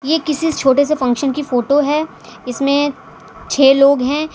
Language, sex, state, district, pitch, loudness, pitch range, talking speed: Hindi, female, Gujarat, Valsad, 275 Hz, -15 LUFS, 255-295 Hz, 165 wpm